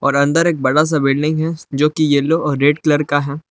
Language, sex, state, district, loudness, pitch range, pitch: Hindi, male, Jharkhand, Palamu, -16 LUFS, 140-155 Hz, 150 Hz